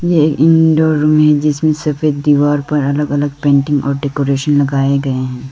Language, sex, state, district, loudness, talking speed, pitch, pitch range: Hindi, female, Arunachal Pradesh, Lower Dibang Valley, -13 LUFS, 165 wpm, 145 Hz, 140-150 Hz